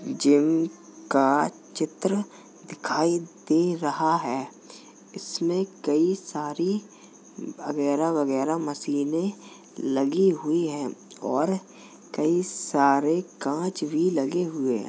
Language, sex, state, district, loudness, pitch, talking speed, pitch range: Hindi, male, Uttar Pradesh, Jalaun, -25 LUFS, 160 Hz, 95 wpm, 145-175 Hz